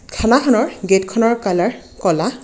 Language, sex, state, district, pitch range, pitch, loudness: Assamese, female, Assam, Kamrup Metropolitan, 195-250 Hz, 230 Hz, -16 LUFS